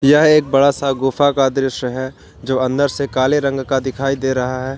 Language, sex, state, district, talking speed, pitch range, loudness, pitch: Hindi, male, Jharkhand, Palamu, 225 wpm, 130-140 Hz, -16 LUFS, 135 Hz